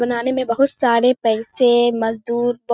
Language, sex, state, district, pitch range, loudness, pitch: Hindi, female, Bihar, Kishanganj, 235-245 Hz, -18 LUFS, 240 Hz